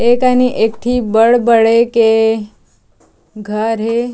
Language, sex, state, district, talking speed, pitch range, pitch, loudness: Chhattisgarhi, female, Chhattisgarh, Jashpur, 130 wpm, 215-235 Hz, 225 Hz, -13 LUFS